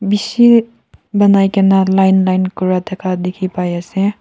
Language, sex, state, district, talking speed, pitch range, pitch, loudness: Nagamese, female, Nagaland, Kohima, 100 wpm, 185-205 Hz, 190 Hz, -13 LUFS